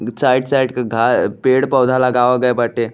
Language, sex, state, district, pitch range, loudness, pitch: Bhojpuri, male, Uttar Pradesh, Deoria, 120-130 Hz, -15 LUFS, 125 Hz